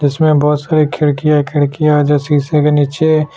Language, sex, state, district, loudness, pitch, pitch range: Hindi, male, Chhattisgarh, Sukma, -13 LUFS, 150 Hz, 145-155 Hz